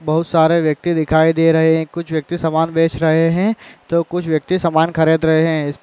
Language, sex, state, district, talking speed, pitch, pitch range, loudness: Hindi, male, Uttar Pradesh, Muzaffarnagar, 205 wpm, 160 Hz, 160-170 Hz, -16 LUFS